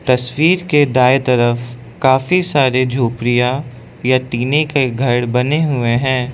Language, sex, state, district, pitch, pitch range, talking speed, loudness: Hindi, male, Arunachal Pradesh, Lower Dibang Valley, 130 Hz, 120-140 Hz, 135 wpm, -15 LUFS